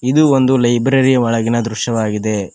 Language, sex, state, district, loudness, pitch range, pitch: Kannada, male, Karnataka, Koppal, -14 LUFS, 110-130 Hz, 120 Hz